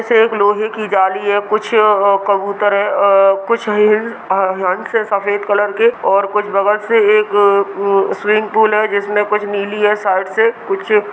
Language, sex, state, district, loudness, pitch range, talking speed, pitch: Hindi, male, Bihar, Purnia, -14 LUFS, 200-215 Hz, 155 wpm, 205 Hz